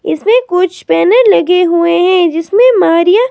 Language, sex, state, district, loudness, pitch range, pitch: Hindi, female, Himachal Pradesh, Shimla, -9 LUFS, 340-435 Hz, 360 Hz